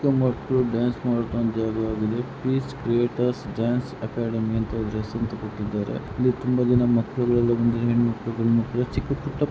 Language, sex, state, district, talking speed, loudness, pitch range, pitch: Kannada, male, Karnataka, Mysore, 80 wpm, -24 LUFS, 115-125 Hz, 120 Hz